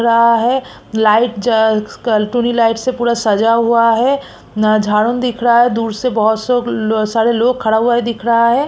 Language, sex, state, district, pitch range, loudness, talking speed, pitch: Hindi, female, Chhattisgarh, Kabirdham, 220-240 Hz, -14 LUFS, 180 wpm, 230 Hz